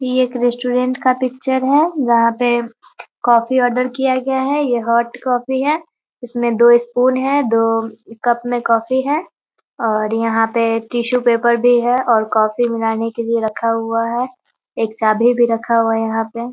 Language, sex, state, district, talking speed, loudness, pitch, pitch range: Hindi, female, Bihar, Muzaffarpur, 180 wpm, -16 LUFS, 240 Hz, 230-255 Hz